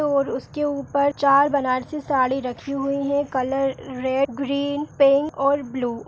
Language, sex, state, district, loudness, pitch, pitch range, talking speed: Kumaoni, female, Uttarakhand, Uttarkashi, -22 LUFS, 275 Hz, 260-285 Hz, 160 wpm